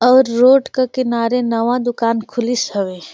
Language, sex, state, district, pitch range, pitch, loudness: Surgujia, female, Chhattisgarh, Sarguja, 230-250 Hz, 240 Hz, -16 LUFS